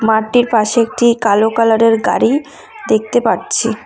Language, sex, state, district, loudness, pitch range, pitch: Bengali, female, West Bengal, Cooch Behar, -13 LUFS, 220-245 Hz, 230 Hz